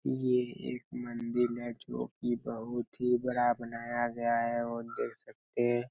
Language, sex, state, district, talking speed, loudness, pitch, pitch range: Hindi, male, Chhattisgarh, Raigarh, 150 wpm, -34 LUFS, 120 Hz, 115-120 Hz